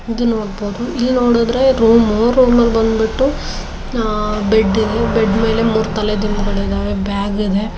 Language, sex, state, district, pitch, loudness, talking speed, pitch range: Kannada, female, Karnataka, Dharwad, 220 Hz, -15 LUFS, 145 wpm, 210-235 Hz